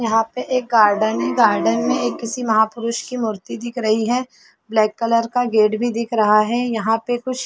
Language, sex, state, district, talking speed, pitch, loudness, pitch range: Hindi, female, Chhattisgarh, Bilaspur, 210 wpm, 225 Hz, -19 LUFS, 215-240 Hz